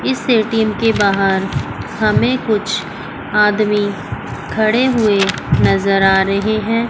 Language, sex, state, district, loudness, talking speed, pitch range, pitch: Hindi, female, Chandigarh, Chandigarh, -15 LUFS, 115 wpm, 195-220 Hz, 210 Hz